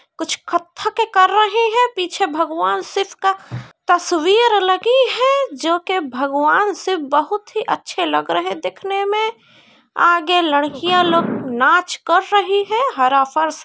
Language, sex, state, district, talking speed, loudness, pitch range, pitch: Hindi, female, Bihar, Kishanganj, 150 wpm, -17 LUFS, 310-405 Hz, 360 Hz